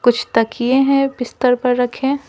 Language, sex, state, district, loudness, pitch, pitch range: Hindi, female, Bihar, Patna, -16 LUFS, 250 Hz, 245-270 Hz